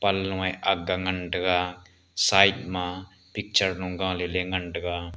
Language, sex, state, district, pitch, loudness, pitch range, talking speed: Wancho, male, Arunachal Pradesh, Longding, 90 Hz, -25 LUFS, 90-95 Hz, 125 wpm